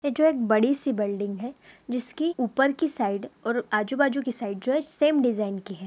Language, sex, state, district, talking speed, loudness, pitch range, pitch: Hindi, female, Maharashtra, Aurangabad, 215 wpm, -26 LUFS, 215-280 Hz, 250 Hz